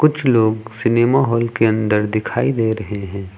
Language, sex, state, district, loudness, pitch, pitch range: Hindi, male, Uttar Pradesh, Lucknow, -17 LUFS, 110 Hz, 110-120 Hz